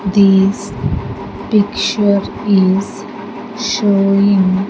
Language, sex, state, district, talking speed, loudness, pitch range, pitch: English, female, Andhra Pradesh, Sri Satya Sai, 50 wpm, -14 LUFS, 195-205 Hz, 200 Hz